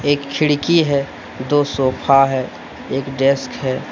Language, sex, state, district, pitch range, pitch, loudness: Hindi, male, Jharkhand, Deoghar, 135-145 Hz, 140 Hz, -17 LUFS